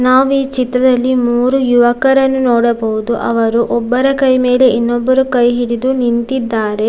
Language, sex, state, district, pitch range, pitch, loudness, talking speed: Kannada, female, Karnataka, Dakshina Kannada, 235-260 Hz, 250 Hz, -13 LUFS, 115 wpm